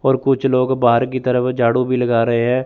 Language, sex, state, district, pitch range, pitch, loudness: Hindi, male, Chandigarh, Chandigarh, 120-130 Hz, 125 Hz, -16 LUFS